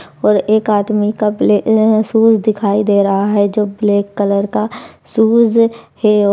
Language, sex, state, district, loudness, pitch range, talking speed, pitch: Hindi, male, Bihar, Madhepura, -13 LUFS, 205-220 Hz, 160 wpm, 210 Hz